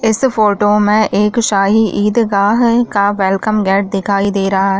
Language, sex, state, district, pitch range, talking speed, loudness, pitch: Hindi, female, Chhattisgarh, Raigarh, 200-220 Hz, 165 wpm, -13 LUFS, 205 Hz